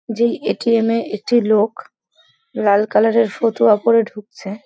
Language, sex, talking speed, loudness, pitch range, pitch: Bengali, female, 155 wpm, -16 LUFS, 210-230 Hz, 225 Hz